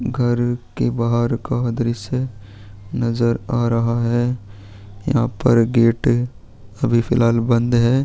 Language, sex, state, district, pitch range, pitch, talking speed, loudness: Hindi, male, Chhattisgarh, Sukma, 115-120 Hz, 120 Hz, 120 wpm, -19 LUFS